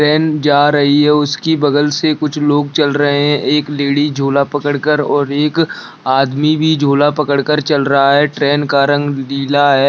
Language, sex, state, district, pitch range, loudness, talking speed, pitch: Hindi, male, Bihar, Jahanabad, 140-150 Hz, -13 LUFS, 190 wpm, 145 Hz